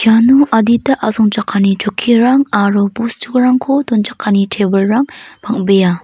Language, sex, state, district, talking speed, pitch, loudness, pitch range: Garo, female, Meghalaya, North Garo Hills, 90 wpm, 225 Hz, -12 LUFS, 200-250 Hz